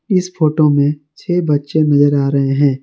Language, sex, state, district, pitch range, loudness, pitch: Hindi, male, Jharkhand, Garhwa, 145-160 Hz, -14 LUFS, 145 Hz